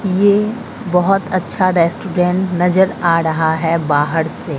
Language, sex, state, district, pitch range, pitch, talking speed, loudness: Hindi, female, Bihar, Katihar, 165-190 Hz, 180 Hz, 130 wpm, -15 LUFS